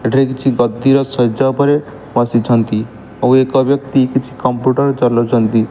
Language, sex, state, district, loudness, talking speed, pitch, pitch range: Odia, male, Odisha, Malkangiri, -14 LUFS, 125 wpm, 130 Hz, 120-135 Hz